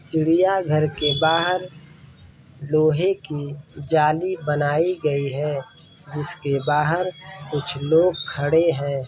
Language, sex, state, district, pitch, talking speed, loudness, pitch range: Hindi, male, Bihar, Saran, 150 Hz, 105 wpm, -21 LUFS, 145-165 Hz